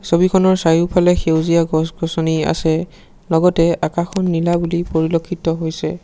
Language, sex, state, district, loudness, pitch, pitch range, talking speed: Assamese, male, Assam, Sonitpur, -17 LUFS, 170 Hz, 165-175 Hz, 120 wpm